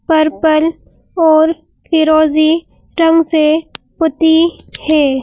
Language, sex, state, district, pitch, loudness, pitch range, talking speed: Hindi, female, Madhya Pradesh, Bhopal, 315 Hz, -12 LUFS, 310-325 Hz, 80 wpm